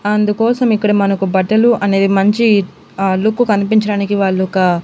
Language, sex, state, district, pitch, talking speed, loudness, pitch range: Telugu, female, Andhra Pradesh, Annamaya, 205 Hz, 135 wpm, -14 LUFS, 195-215 Hz